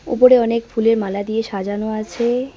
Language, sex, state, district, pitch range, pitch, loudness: Bengali, female, West Bengal, Cooch Behar, 215-240 Hz, 225 Hz, -18 LUFS